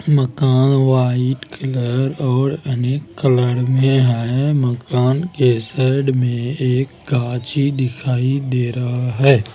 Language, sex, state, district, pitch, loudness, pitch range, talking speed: Hindi, male, Bihar, Araria, 130 Hz, -17 LUFS, 125-135 Hz, 115 wpm